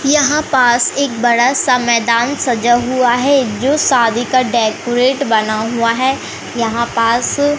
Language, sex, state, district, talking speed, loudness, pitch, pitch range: Hindi, female, Madhya Pradesh, Umaria, 140 wpm, -14 LUFS, 245 Hz, 235-270 Hz